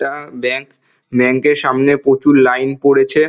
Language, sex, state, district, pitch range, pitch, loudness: Bengali, male, West Bengal, Dakshin Dinajpur, 130-140 Hz, 135 Hz, -14 LUFS